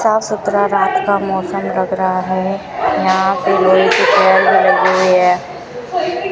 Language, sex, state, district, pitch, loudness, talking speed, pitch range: Hindi, female, Rajasthan, Bikaner, 190 Hz, -14 LUFS, 115 wpm, 185-205 Hz